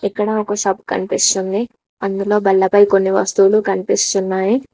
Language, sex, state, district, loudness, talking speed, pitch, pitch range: Telugu, female, Telangana, Mahabubabad, -16 LUFS, 115 wpm, 195 Hz, 195-210 Hz